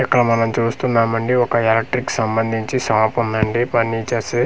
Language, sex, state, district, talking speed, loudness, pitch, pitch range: Telugu, male, Andhra Pradesh, Manyam, 150 wpm, -18 LUFS, 115 Hz, 115-120 Hz